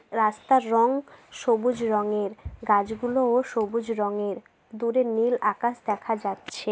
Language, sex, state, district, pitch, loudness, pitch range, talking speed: Bengali, female, West Bengal, Jhargram, 225 Hz, -25 LUFS, 210-240 Hz, 105 wpm